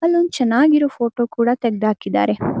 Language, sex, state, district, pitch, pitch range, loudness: Kannada, female, Karnataka, Mysore, 240 Hz, 225-290 Hz, -18 LUFS